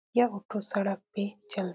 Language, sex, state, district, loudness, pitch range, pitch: Hindi, female, Bihar, Saran, -32 LUFS, 195-210 Hz, 200 Hz